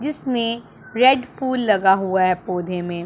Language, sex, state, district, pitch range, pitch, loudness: Hindi, male, Punjab, Pathankot, 185-255 Hz, 215 Hz, -19 LUFS